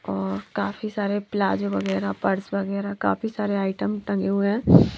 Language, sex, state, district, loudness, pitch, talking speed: Hindi, female, Bihar, Kaimur, -24 LUFS, 200 Hz, 155 wpm